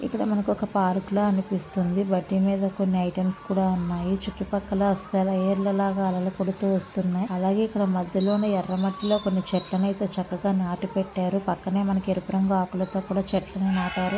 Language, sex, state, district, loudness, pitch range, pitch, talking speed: Telugu, female, Andhra Pradesh, Visakhapatnam, -25 LUFS, 185-200 Hz, 190 Hz, 155 wpm